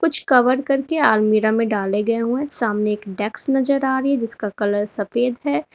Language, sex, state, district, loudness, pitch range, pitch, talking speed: Hindi, female, Uttar Pradesh, Lalitpur, -19 LUFS, 210-270 Hz, 230 Hz, 210 wpm